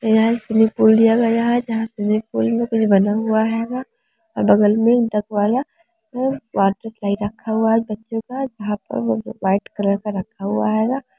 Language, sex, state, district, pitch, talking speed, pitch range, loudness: Hindi, female, Bihar, Sitamarhi, 220 Hz, 175 wpm, 210-235 Hz, -19 LUFS